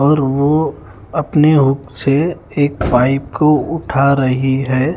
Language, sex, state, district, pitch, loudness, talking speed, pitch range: Hindi, male, Haryana, Charkhi Dadri, 140 Hz, -15 LUFS, 135 wpm, 130-150 Hz